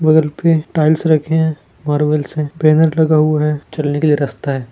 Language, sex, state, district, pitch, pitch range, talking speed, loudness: Hindi, male, Bihar, Darbhanga, 155 Hz, 150-160 Hz, 205 wpm, -15 LUFS